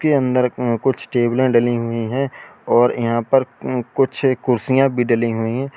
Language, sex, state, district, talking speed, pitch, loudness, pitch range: Hindi, male, Uttar Pradesh, Lalitpur, 185 wpm, 125 Hz, -18 LUFS, 120-135 Hz